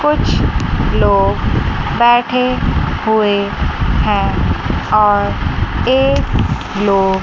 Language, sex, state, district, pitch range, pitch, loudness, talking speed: Hindi, female, Chandigarh, Chandigarh, 205-250 Hz, 215 Hz, -14 LUFS, 65 wpm